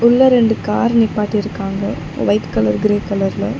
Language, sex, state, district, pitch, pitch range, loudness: Tamil, female, Tamil Nadu, Chennai, 210 Hz, 195-230 Hz, -16 LUFS